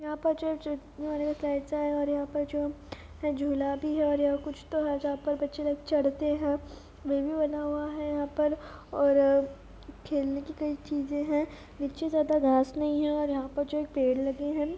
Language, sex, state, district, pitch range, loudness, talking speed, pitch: Hindi, female, Bihar, Purnia, 285-300 Hz, -30 LUFS, 190 wpm, 295 Hz